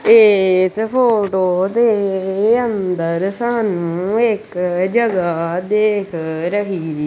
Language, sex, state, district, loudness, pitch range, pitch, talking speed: Punjabi, male, Punjab, Kapurthala, -16 LUFS, 180-220 Hz, 195 Hz, 75 wpm